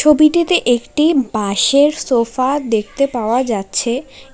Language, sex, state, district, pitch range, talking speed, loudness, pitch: Bengali, female, West Bengal, Alipurduar, 230-295 Hz, 95 wpm, -15 LUFS, 260 Hz